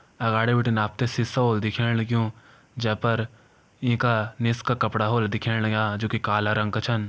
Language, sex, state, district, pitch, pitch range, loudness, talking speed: Hindi, male, Uttarakhand, Uttarkashi, 115 Hz, 110-120 Hz, -24 LUFS, 170 wpm